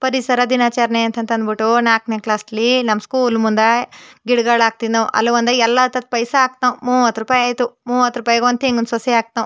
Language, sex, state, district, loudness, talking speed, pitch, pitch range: Kannada, female, Karnataka, Chamarajanagar, -16 LUFS, 180 wpm, 240 Hz, 230-250 Hz